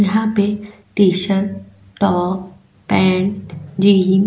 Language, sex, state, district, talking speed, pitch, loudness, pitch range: Hindi, female, Goa, North and South Goa, 100 wpm, 190 Hz, -17 LUFS, 185-200 Hz